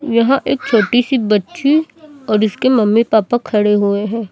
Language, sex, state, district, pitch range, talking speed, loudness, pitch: Hindi, female, Chhattisgarh, Raipur, 210-265 Hz, 165 wpm, -14 LUFS, 230 Hz